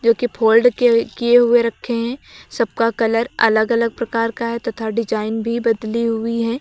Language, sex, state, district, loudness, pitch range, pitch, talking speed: Hindi, female, Uttar Pradesh, Lucknow, -18 LUFS, 225-235 Hz, 230 Hz, 170 wpm